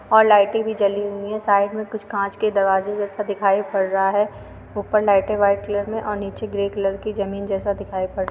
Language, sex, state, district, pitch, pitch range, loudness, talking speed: Hindi, female, Uttar Pradesh, Varanasi, 200 Hz, 200-210 Hz, -21 LUFS, 230 wpm